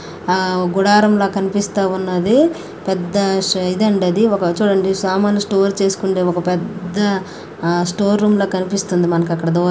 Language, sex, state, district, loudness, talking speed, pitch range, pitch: Telugu, female, Telangana, Karimnagar, -16 LUFS, 130 wpm, 180-200 Hz, 195 Hz